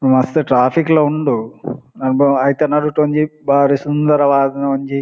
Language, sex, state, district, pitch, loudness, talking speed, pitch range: Tulu, male, Karnataka, Dakshina Kannada, 140 Hz, -15 LUFS, 145 wpm, 135-150 Hz